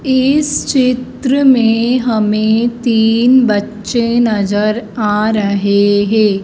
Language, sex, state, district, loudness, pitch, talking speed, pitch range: Hindi, female, Madhya Pradesh, Dhar, -13 LUFS, 225 Hz, 95 wpm, 210-250 Hz